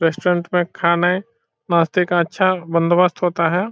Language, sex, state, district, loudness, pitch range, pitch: Hindi, male, Bihar, Saran, -18 LUFS, 170-180 Hz, 175 Hz